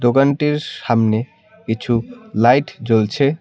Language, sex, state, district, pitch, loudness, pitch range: Bengali, male, West Bengal, Cooch Behar, 120 Hz, -18 LUFS, 115-150 Hz